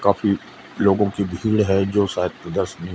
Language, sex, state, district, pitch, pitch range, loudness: Hindi, male, Madhya Pradesh, Umaria, 100 Hz, 95-105 Hz, -21 LUFS